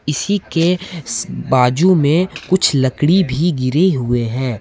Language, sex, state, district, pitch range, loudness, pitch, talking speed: Hindi, male, Jharkhand, Ranchi, 130-180 Hz, -16 LUFS, 155 Hz, 130 wpm